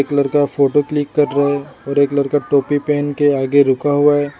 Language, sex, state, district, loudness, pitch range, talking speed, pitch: Hindi, male, Assam, Sonitpur, -16 LUFS, 140-145 Hz, 220 wpm, 145 Hz